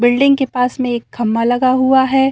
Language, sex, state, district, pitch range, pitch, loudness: Hindi, female, Bihar, Saran, 240-265 Hz, 255 Hz, -14 LUFS